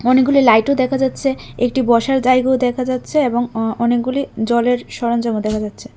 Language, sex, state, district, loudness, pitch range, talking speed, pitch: Bengali, female, Tripura, West Tripura, -16 LUFS, 235-260 Hz, 160 wpm, 245 Hz